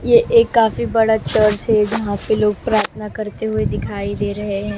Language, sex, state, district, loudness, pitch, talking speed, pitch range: Hindi, female, Maharashtra, Mumbai Suburban, -17 LUFS, 210 Hz, 200 wpm, 205-220 Hz